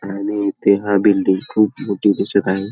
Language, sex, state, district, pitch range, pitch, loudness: Marathi, male, Maharashtra, Pune, 100-105 Hz, 100 Hz, -17 LUFS